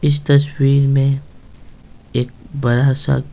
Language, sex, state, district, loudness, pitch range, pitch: Hindi, male, Bihar, Patna, -16 LUFS, 135-145 Hz, 135 Hz